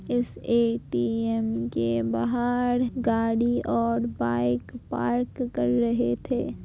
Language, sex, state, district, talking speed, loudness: Hindi, female, Uttar Pradesh, Jalaun, 100 wpm, -26 LUFS